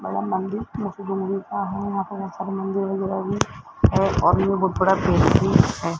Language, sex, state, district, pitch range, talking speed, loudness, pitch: Hindi, male, Rajasthan, Jaipur, 190-195 Hz, 180 wpm, -22 LUFS, 195 Hz